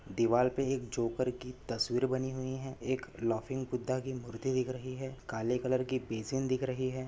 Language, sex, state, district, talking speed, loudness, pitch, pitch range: Hindi, male, Maharashtra, Nagpur, 205 wpm, -34 LUFS, 130 Hz, 120-130 Hz